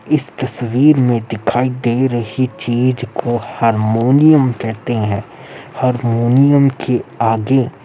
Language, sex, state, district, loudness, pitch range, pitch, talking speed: Hindi, male, Uttar Pradesh, Muzaffarnagar, -15 LUFS, 115-130 Hz, 120 Hz, 115 wpm